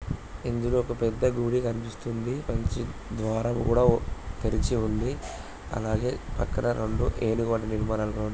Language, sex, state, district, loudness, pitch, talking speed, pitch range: Telugu, male, Andhra Pradesh, Guntur, -28 LUFS, 115 Hz, 95 wpm, 110-120 Hz